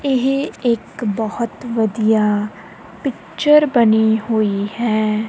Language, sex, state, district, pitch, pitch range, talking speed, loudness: Punjabi, female, Punjab, Kapurthala, 220 Hz, 215-240 Hz, 90 wpm, -17 LUFS